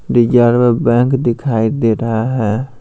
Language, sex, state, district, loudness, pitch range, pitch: Hindi, male, Bihar, Patna, -14 LUFS, 115-125 Hz, 120 Hz